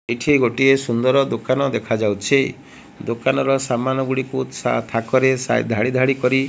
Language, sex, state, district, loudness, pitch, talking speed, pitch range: Odia, female, Odisha, Malkangiri, -19 LUFS, 130 Hz, 130 wpm, 120-135 Hz